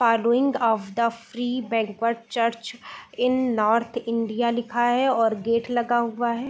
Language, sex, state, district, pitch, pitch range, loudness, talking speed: Hindi, female, Bihar, Gopalganj, 235 Hz, 230-245 Hz, -23 LUFS, 145 wpm